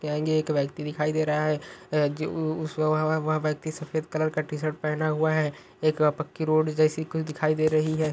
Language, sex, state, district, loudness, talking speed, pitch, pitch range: Hindi, male, Uttar Pradesh, Ghazipur, -26 LUFS, 175 wpm, 155 Hz, 150-155 Hz